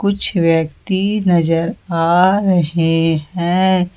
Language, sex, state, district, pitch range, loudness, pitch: Hindi, female, Jharkhand, Ranchi, 165-190 Hz, -15 LUFS, 175 Hz